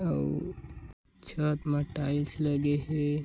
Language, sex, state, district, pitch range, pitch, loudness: Chhattisgarhi, male, Chhattisgarh, Bilaspur, 145-150 Hz, 145 Hz, -31 LUFS